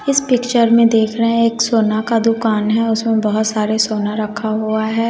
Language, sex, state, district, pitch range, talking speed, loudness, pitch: Hindi, female, Bihar, West Champaran, 215-230 Hz, 210 wpm, -15 LUFS, 225 Hz